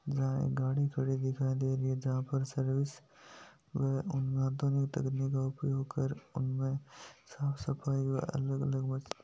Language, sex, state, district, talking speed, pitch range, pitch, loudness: Hindi, male, Rajasthan, Nagaur, 130 wpm, 135-140 Hz, 135 Hz, -34 LUFS